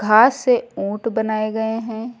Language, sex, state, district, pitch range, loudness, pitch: Hindi, female, Uttar Pradesh, Lucknow, 215-235 Hz, -19 LUFS, 220 Hz